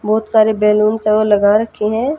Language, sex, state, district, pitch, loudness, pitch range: Hindi, female, Haryana, Jhajjar, 215 Hz, -14 LUFS, 210-220 Hz